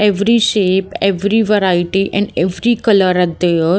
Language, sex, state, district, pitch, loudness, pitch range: English, female, Haryana, Jhajjar, 195 Hz, -14 LUFS, 180-210 Hz